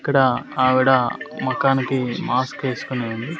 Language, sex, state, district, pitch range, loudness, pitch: Telugu, male, Andhra Pradesh, Sri Satya Sai, 125-135 Hz, -20 LUFS, 130 Hz